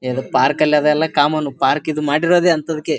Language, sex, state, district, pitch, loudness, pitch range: Kannada, male, Karnataka, Bijapur, 150 Hz, -16 LUFS, 145-155 Hz